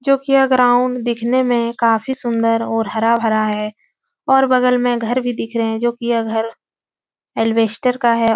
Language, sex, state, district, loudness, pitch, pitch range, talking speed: Hindi, female, Uttar Pradesh, Etah, -17 LUFS, 235 Hz, 225-250 Hz, 180 wpm